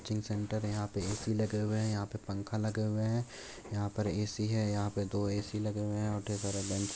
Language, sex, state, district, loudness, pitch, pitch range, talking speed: Hindi, male, Bihar, Purnia, -35 LUFS, 105 Hz, 100-110 Hz, 265 wpm